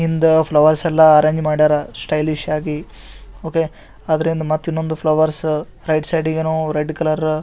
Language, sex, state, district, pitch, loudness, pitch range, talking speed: Kannada, male, Karnataka, Gulbarga, 155 Hz, -17 LUFS, 155-160 Hz, 135 wpm